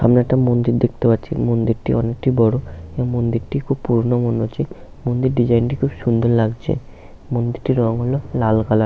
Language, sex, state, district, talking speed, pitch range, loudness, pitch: Bengali, male, West Bengal, Paschim Medinipur, 175 wpm, 115-125 Hz, -19 LUFS, 120 Hz